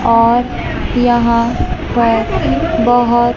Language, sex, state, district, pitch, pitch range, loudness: Hindi, female, Chandigarh, Chandigarh, 235 Hz, 230-240 Hz, -13 LUFS